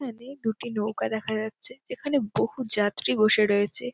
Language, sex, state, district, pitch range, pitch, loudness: Bengali, female, West Bengal, Dakshin Dinajpur, 210-255 Hz, 220 Hz, -26 LUFS